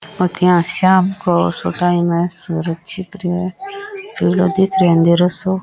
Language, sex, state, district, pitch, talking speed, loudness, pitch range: Rajasthani, male, Rajasthan, Nagaur, 180 Hz, 150 wpm, -15 LUFS, 170-190 Hz